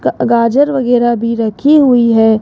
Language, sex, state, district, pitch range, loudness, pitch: Hindi, female, Rajasthan, Jaipur, 230-265 Hz, -11 LUFS, 235 Hz